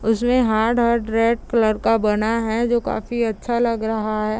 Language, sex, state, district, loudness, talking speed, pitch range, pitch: Hindi, female, Bihar, Gopalganj, -20 LUFS, 190 wpm, 220-235 Hz, 225 Hz